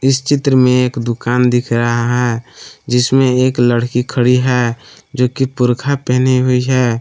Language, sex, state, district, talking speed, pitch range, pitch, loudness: Hindi, male, Jharkhand, Palamu, 165 wpm, 120-130 Hz, 125 Hz, -14 LUFS